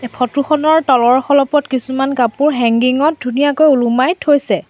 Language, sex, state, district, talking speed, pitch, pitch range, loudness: Assamese, female, Assam, Sonitpur, 140 wpm, 270 Hz, 250-295 Hz, -13 LUFS